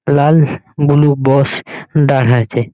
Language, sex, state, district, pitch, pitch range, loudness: Bengali, male, West Bengal, Malda, 140 Hz, 130-145 Hz, -12 LUFS